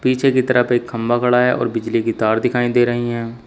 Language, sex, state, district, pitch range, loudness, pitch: Hindi, male, Uttar Pradesh, Shamli, 115-125 Hz, -17 LUFS, 120 Hz